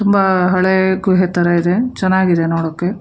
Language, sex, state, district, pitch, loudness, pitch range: Kannada, female, Karnataka, Bangalore, 185 Hz, -14 LUFS, 175-190 Hz